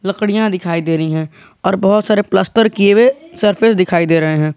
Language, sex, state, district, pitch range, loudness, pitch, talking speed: Hindi, male, Jharkhand, Garhwa, 165-215 Hz, -14 LUFS, 195 Hz, 210 wpm